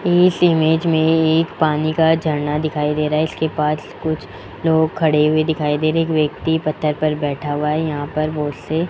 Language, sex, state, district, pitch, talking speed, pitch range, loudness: Hindi, male, Rajasthan, Jaipur, 155 Hz, 210 wpm, 150-160 Hz, -18 LUFS